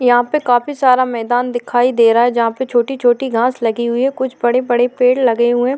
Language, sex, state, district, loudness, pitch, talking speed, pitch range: Hindi, female, Maharashtra, Chandrapur, -15 LUFS, 245 Hz, 250 wpm, 240-255 Hz